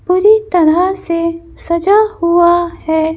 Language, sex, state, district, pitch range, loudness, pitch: Hindi, female, Madhya Pradesh, Bhopal, 335-375 Hz, -12 LUFS, 345 Hz